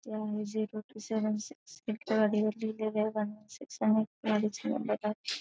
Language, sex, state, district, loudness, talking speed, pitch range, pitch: Marathi, female, Maharashtra, Aurangabad, -33 LUFS, 210 wpm, 215-220 Hz, 215 Hz